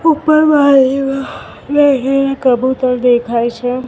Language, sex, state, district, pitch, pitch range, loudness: Gujarati, female, Gujarat, Gandhinagar, 270 Hz, 250-285 Hz, -12 LUFS